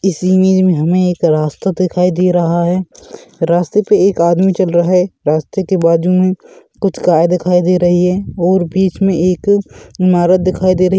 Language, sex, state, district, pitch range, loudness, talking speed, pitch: Hindi, male, Rajasthan, Churu, 175-190 Hz, -13 LUFS, 195 wpm, 180 Hz